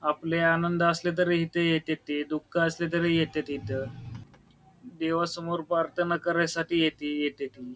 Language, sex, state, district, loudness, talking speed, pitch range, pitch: Marathi, male, Maharashtra, Pune, -27 LUFS, 130 wpm, 150-170 Hz, 165 Hz